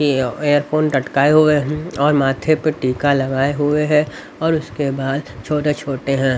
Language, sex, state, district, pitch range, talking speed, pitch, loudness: Hindi, male, Haryana, Rohtak, 135-150 Hz, 150 wpm, 145 Hz, -17 LUFS